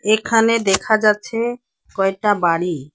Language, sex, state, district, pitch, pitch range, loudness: Bengali, female, West Bengal, Alipurduar, 215 Hz, 195-225 Hz, -17 LUFS